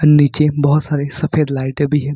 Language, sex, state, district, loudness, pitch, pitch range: Hindi, male, Jharkhand, Ranchi, -15 LUFS, 145 Hz, 145-150 Hz